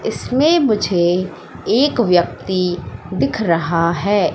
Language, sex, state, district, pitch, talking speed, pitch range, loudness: Hindi, female, Madhya Pradesh, Katni, 185 Hz, 95 wpm, 170-225 Hz, -17 LUFS